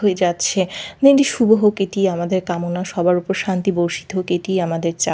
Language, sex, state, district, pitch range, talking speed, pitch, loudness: Bengali, female, West Bengal, Jhargram, 175-195 Hz, 185 wpm, 185 Hz, -18 LUFS